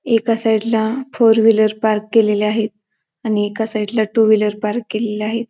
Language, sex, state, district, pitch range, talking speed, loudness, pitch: Marathi, female, Maharashtra, Pune, 210-225 Hz, 165 wpm, -17 LUFS, 220 Hz